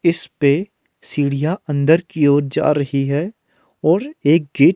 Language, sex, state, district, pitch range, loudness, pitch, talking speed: Hindi, male, Himachal Pradesh, Shimla, 140-170 Hz, -18 LUFS, 150 Hz, 165 wpm